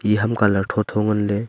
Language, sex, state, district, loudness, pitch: Wancho, male, Arunachal Pradesh, Longding, -20 LUFS, 105 Hz